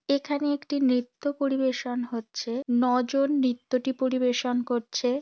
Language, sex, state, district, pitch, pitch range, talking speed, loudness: Bengali, female, West Bengal, Dakshin Dinajpur, 255 Hz, 245-275 Hz, 105 wpm, -27 LUFS